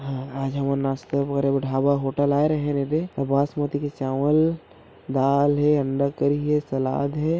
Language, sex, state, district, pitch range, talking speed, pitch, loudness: Chhattisgarhi, male, Chhattisgarh, Korba, 135-145 Hz, 170 wpm, 140 Hz, -23 LUFS